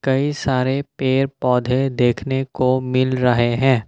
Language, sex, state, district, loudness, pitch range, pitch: Hindi, male, Assam, Kamrup Metropolitan, -19 LUFS, 125-135 Hz, 130 Hz